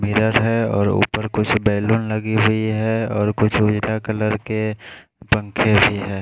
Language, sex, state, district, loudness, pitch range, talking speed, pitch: Hindi, male, Bihar, Patna, -19 LUFS, 105-110 Hz, 165 wpm, 110 Hz